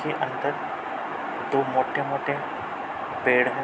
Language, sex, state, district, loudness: Hindi, male, Uttar Pradesh, Budaun, -27 LUFS